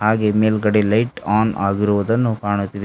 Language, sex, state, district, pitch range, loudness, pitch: Kannada, male, Karnataka, Bidar, 100-110 Hz, -18 LUFS, 105 Hz